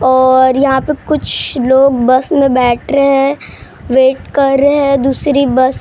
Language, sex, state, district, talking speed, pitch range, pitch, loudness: Hindi, female, Maharashtra, Gondia, 175 wpm, 260-280 Hz, 270 Hz, -11 LUFS